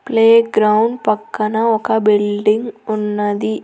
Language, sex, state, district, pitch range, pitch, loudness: Telugu, female, Andhra Pradesh, Annamaya, 210-225 Hz, 215 Hz, -15 LUFS